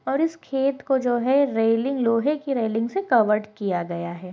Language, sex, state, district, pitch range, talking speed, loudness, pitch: Hindi, female, Chhattisgarh, Balrampur, 220-275 Hz, 205 wpm, -23 LUFS, 240 Hz